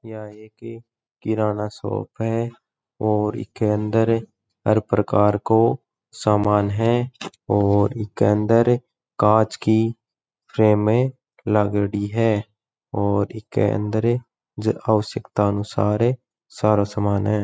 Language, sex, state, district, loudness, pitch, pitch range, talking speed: Rajasthani, male, Rajasthan, Churu, -21 LUFS, 110 Hz, 105-115 Hz, 85 wpm